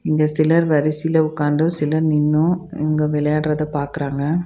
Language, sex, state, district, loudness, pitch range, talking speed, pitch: Tamil, female, Tamil Nadu, Nilgiris, -18 LUFS, 150-160 Hz, 120 wpm, 155 Hz